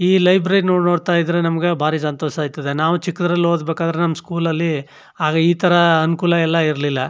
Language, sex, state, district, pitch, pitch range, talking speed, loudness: Kannada, male, Karnataka, Chamarajanagar, 170 Hz, 155-175 Hz, 185 wpm, -17 LUFS